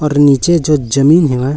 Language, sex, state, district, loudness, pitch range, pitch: Hindi, male, Chhattisgarh, Raipur, -11 LUFS, 135-155 Hz, 145 Hz